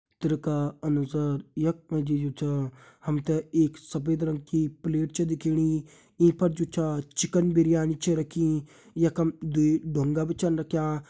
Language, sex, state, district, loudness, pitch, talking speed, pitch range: Hindi, male, Uttarakhand, Uttarkashi, -27 LUFS, 160 Hz, 165 wpm, 150-165 Hz